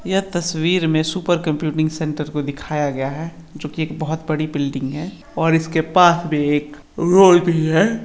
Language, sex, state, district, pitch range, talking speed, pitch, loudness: Hindi, male, Uttar Pradesh, Varanasi, 150-175 Hz, 185 wpm, 160 Hz, -18 LUFS